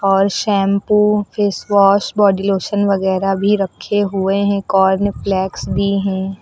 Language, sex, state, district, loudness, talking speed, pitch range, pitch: Hindi, female, Uttar Pradesh, Lucknow, -16 LUFS, 130 wpm, 195-205 Hz, 195 Hz